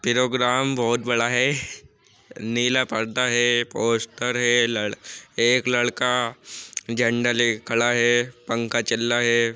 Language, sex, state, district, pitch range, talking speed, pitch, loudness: Hindi, male, Uttar Pradesh, Jyotiba Phule Nagar, 115-125 Hz, 120 wpm, 120 Hz, -22 LUFS